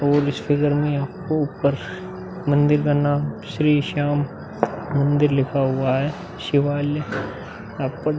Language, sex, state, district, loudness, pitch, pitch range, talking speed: Hindi, male, Uttar Pradesh, Muzaffarnagar, -22 LUFS, 145 Hz, 140-150 Hz, 140 wpm